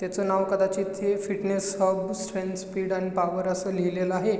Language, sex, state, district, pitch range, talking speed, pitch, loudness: Marathi, male, Maharashtra, Chandrapur, 185-195 Hz, 165 wpm, 190 Hz, -27 LUFS